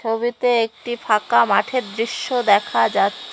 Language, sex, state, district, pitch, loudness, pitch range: Bengali, female, West Bengal, Cooch Behar, 230 Hz, -19 LUFS, 215-240 Hz